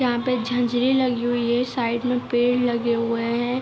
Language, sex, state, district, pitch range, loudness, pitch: Hindi, female, Jharkhand, Jamtara, 235-250 Hz, -22 LUFS, 240 Hz